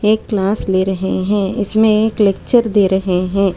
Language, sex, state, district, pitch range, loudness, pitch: Hindi, female, Karnataka, Bangalore, 190-215 Hz, -15 LUFS, 200 Hz